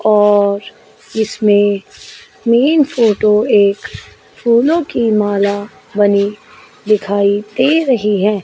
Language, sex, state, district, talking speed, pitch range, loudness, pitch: Hindi, female, Chandigarh, Chandigarh, 90 wpm, 205-235 Hz, -13 LUFS, 210 Hz